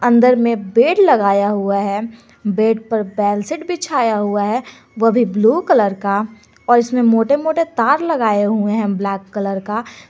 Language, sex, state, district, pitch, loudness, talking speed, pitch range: Hindi, female, Jharkhand, Garhwa, 225 Hz, -16 LUFS, 165 wpm, 205-245 Hz